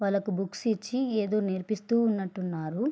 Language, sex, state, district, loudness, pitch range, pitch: Telugu, female, Andhra Pradesh, Srikakulam, -29 LUFS, 190-225 Hz, 205 Hz